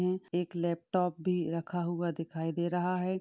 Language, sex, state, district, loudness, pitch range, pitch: Hindi, female, Uttar Pradesh, Budaun, -33 LUFS, 170-180 Hz, 175 Hz